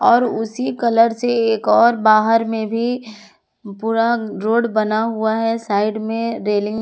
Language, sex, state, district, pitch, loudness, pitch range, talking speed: Hindi, female, Jharkhand, Ranchi, 225 Hz, -17 LUFS, 215-230 Hz, 160 wpm